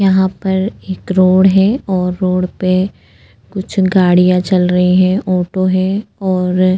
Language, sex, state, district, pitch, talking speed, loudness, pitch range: Hindi, female, Goa, North and South Goa, 185 Hz, 150 wpm, -13 LUFS, 180-190 Hz